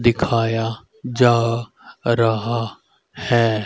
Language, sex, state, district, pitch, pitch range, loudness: Hindi, male, Haryana, Rohtak, 115 Hz, 115-120 Hz, -20 LUFS